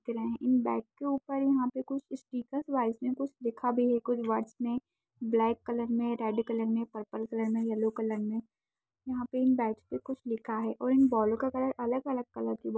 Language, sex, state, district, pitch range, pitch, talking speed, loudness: Hindi, female, Chhattisgarh, Kabirdham, 225-255 Hz, 235 Hz, 220 wpm, -32 LUFS